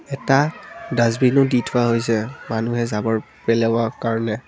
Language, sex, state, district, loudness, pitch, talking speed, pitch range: Assamese, female, Assam, Kamrup Metropolitan, -20 LUFS, 115 Hz, 120 wpm, 115-130 Hz